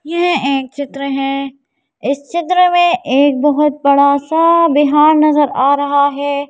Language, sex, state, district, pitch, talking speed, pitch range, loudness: Hindi, female, Madhya Pradesh, Bhopal, 285 Hz, 145 wpm, 275-315 Hz, -13 LUFS